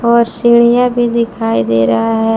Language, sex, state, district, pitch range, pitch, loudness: Hindi, female, Jharkhand, Palamu, 225-235 Hz, 235 Hz, -12 LUFS